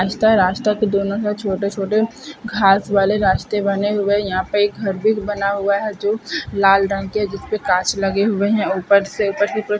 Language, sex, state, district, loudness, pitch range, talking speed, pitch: Hindi, female, Maharashtra, Sindhudurg, -18 LUFS, 195-210 Hz, 215 wpm, 205 Hz